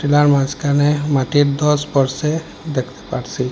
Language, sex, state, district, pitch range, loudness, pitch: Bengali, male, Assam, Hailakandi, 135-150 Hz, -17 LUFS, 145 Hz